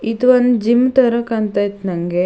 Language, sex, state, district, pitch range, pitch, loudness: Kannada, female, Karnataka, Shimoga, 200-245 Hz, 225 Hz, -15 LUFS